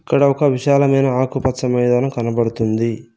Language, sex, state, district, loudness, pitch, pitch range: Telugu, male, Telangana, Mahabubabad, -17 LUFS, 125 Hz, 115-135 Hz